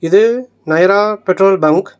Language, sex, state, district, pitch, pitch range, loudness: Tamil, male, Tamil Nadu, Nilgiris, 195 Hz, 180-210 Hz, -12 LUFS